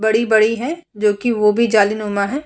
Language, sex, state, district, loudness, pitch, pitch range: Hindi, female, Bihar, Vaishali, -16 LUFS, 220 Hz, 210-235 Hz